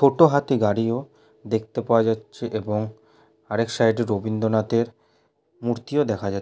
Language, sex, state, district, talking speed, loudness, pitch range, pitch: Bengali, male, West Bengal, Purulia, 140 wpm, -23 LUFS, 110-120 Hz, 110 Hz